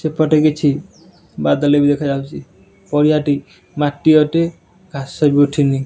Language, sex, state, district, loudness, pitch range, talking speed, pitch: Odia, male, Odisha, Nuapada, -16 LUFS, 140-155 Hz, 115 wpm, 145 Hz